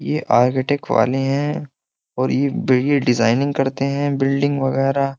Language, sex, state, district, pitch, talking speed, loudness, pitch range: Hindi, male, Uttar Pradesh, Jyotiba Phule Nagar, 135 Hz, 140 wpm, -18 LUFS, 135-140 Hz